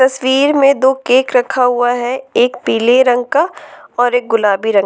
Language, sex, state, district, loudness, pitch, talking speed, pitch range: Hindi, female, Jharkhand, Ranchi, -13 LUFS, 250 Hz, 185 wpm, 245-265 Hz